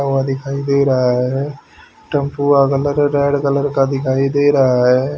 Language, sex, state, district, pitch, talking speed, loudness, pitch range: Hindi, male, Haryana, Jhajjar, 140 Hz, 160 wpm, -15 LUFS, 135-145 Hz